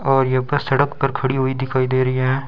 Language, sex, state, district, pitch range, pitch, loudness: Hindi, male, Rajasthan, Bikaner, 130-135 Hz, 130 Hz, -19 LUFS